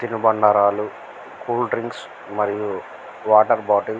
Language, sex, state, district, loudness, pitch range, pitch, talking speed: Telugu, male, Andhra Pradesh, Guntur, -19 LUFS, 105-110 Hz, 105 Hz, 120 wpm